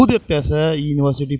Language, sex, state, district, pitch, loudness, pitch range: Maithili, male, Bihar, Purnia, 150 Hz, -18 LUFS, 140-160 Hz